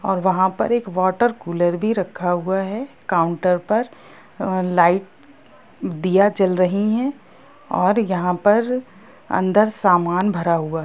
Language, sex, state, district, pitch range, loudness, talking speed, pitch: Hindi, female, Bihar, Gopalganj, 180-215 Hz, -19 LUFS, 145 wpm, 190 Hz